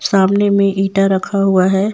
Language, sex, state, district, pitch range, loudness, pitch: Hindi, female, Jharkhand, Ranchi, 190-200 Hz, -14 LUFS, 195 Hz